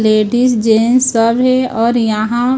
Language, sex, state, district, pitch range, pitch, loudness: Hindi, female, Chhattisgarh, Raipur, 220-250 Hz, 235 Hz, -12 LUFS